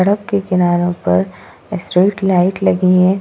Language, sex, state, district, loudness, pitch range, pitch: Hindi, female, Goa, North and South Goa, -14 LUFS, 175-190 Hz, 185 Hz